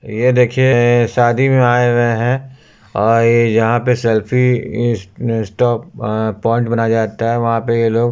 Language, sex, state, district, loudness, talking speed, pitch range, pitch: Hindi, male, Uttar Pradesh, Muzaffarnagar, -15 LUFS, 155 wpm, 115-120 Hz, 120 Hz